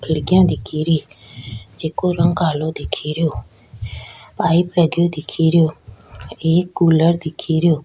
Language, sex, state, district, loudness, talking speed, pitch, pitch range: Rajasthani, female, Rajasthan, Churu, -18 LUFS, 115 wpm, 160 Hz, 120-170 Hz